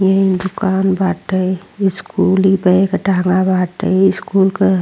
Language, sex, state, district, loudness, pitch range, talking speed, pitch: Bhojpuri, female, Uttar Pradesh, Ghazipur, -15 LUFS, 185-195 Hz, 125 wpm, 190 Hz